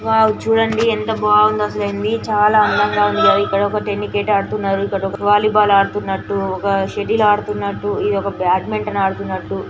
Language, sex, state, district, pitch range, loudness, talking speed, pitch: Telugu, male, Andhra Pradesh, Guntur, 195-215 Hz, -17 LUFS, 130 wpm, 205 Hz